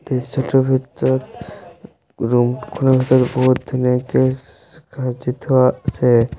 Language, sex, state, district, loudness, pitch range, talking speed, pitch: Assamese, male, Assam, Sonitpur, -17 LUFS, 125-130 Hz, 105 wpm, 130 Hz